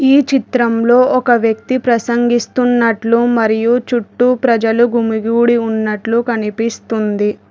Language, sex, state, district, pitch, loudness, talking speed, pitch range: Telugu, female, Telangana, Hyderabad, 235 Hz, -14 LUFS, 90 wpm, 225-245 Hz